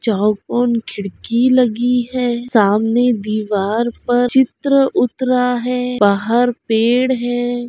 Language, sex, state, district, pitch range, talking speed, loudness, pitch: Hindi, female, Bihar, Araria, 220-250 Hz, 110 wpm, -16 LUFS, 240 Hz